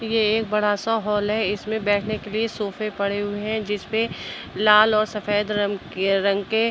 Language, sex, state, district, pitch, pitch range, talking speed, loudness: Hindi, female, Uttar Pradesh, Budaun, 210 Hz, 205-220 Hz, 205 wpm, -22 LUFS